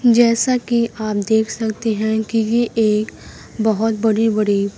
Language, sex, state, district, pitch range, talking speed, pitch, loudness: Hindi, female, Bihar, Kaimur, 215-230 Hz, 150 wpm, 220 Hz, -18 LUFS